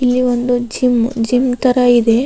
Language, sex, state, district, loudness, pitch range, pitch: Kannada, female, Karnataka, Raichur, -14 LUFS, 240-250 Hz, 245 Hz